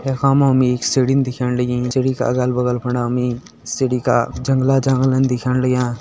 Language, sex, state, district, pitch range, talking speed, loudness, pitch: Garhwali, male, Uttarakhand, Tehri Garhwal, 125-130 Hz, 190 wpm, -18 LUFS, 125 Hz